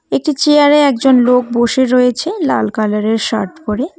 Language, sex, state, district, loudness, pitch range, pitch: Bengali, female, West Bengal, Cooch Behar, -13 LUFS, 225-290 Hz, 250 Hz